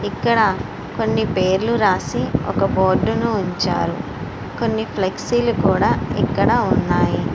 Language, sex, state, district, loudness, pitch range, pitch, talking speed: Telugu, female, Andhra Pradesh, Srikakulam, -19 LUFS, 190-235 Hz, 220 Hz, 105 wpm